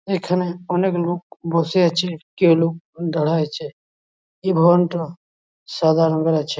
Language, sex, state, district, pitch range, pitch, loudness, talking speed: Bengali, male, West Bengal, Jhargram, 160-175 Hz, 165 Hz, -19 LUFS, 125 wpm